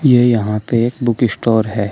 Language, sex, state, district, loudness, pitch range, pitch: Hindi, male, Uttar Pradesh, Shamli, -15 LUFS, 105-120 Hz, 115 Hz